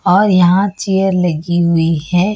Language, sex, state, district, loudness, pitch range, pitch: Hindi, female, Chhattisgarh, Raipur, -13 LUFS, 170-195 Hz, 180 Hz